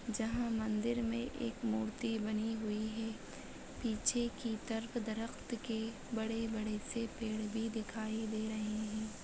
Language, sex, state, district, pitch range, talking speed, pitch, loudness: Hindi, female, Maharashtra, Solapur, 220-230 Hz, 135 wpm, 225 Hz, -39 LUFS